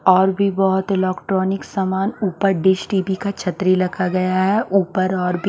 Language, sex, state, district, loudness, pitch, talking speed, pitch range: Hindi, female, Haryana, Charkhi Dadri, -19 LUFS, 190 Hz, 175 wpm, 185-195 Hz